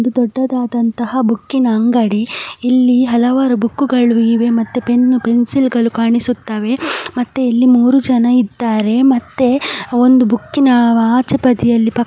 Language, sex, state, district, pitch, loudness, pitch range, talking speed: Kannada, male, Karnataka, Mysore, 245 Hz, -13 LUFS, 230-255 Hz, 120 wpm